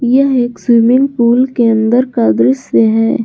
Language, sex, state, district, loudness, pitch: Hindi, female, Jharkhand, Garhwa, -11 LUFS, 235 Hz